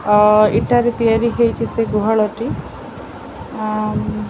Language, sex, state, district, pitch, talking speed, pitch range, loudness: Odia, female, Odisha, Khordha, 220 Hz, 140 wpm, 215-230 Hz, -16 LUFS